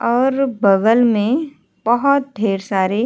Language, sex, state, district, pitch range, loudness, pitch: Hindi, female, Uttar Pradesh, Hamirpur, 205-265 Hz, -16 LUFS, 235 Hz